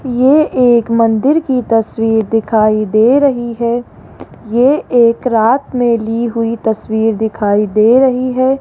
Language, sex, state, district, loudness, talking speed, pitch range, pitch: Hindi, female, Rajasthan, Jaipur, -12 LUFS, 140 wpm, 220-255 Hz, 235 Hz